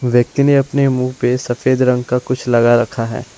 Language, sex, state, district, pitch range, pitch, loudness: Hindi, male, Assam, Sonitpur, 120-130 Hz, 125 Hz, -15 LUFS